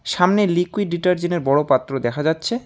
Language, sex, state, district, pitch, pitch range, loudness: Bengali, male, West Bengal, Alipurduar, 175 Hz, 150-185 Hz, -19 LUFS